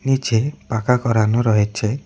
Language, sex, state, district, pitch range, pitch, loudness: Bengali, male, West Bengal, Cooch Behar, 110-130 Hz, 115 Hz, -18 LUFS